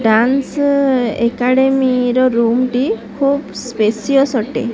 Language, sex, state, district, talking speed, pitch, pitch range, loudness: Odia, female, Odisha, Sambalpur, 100 wpm, 250 Hz, 235-270 Hz, -15 LUFS